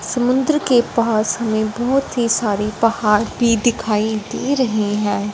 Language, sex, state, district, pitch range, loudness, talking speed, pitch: Hindi, female, Punjab, Fazilka, 210-245 Hz, -18 LUFS, 145 wpm, 225 Hz